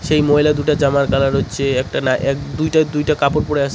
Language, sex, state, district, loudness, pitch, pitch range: Bengali, male, West Bengal, Cooch Behar, -16 LUFS, 140 Hz, 135-150 Hz